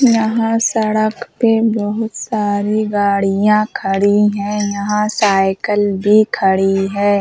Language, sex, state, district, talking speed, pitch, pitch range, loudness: Hindi, female, Uttar Pradesh, Hamirpur, 110 wpm, 210 Hz, 200-220 Hz, -15 LUFS